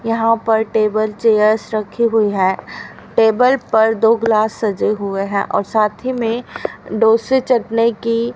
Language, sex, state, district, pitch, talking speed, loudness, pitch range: Hindi, female, Haryana, Rohtak, 225 Hz, 150 wpm, -16 LUFS, 215-230 Hz